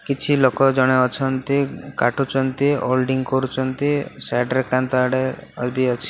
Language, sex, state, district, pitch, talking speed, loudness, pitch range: Odia, male, Odisha, Malkangiri, 130 Hz, 120 wpm, -20 LUFS, 130-135 Hz